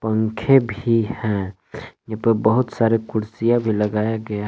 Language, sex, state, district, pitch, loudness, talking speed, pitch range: Hindi, male, Jharkhand, Palamu, 110 Hz, -20 LUFS, 150 wpm, 110-115 Hz